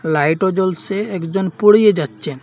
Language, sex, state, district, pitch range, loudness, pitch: Bengali, male, Assam, Hailakandi, 155-200 Hz, -16 LUFS, 185 Hz